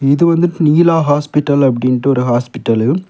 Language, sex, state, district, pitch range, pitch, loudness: Tamil, male, Tamil Nadu, Kanyakumari, 125-165 Hz, 140 Hz, -13 LUFS